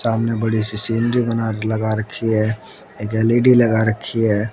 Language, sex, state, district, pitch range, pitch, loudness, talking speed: Hindi, male, Haryana, Jhajjar, 110-115 Hz, 110 Hz, -18 LUFS, 170 wpm